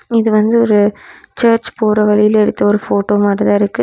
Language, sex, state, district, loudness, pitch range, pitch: Tamil, female, Tamil Nadu, Namakkal, -13 LUFS, 205-220 Hz, 210 Hz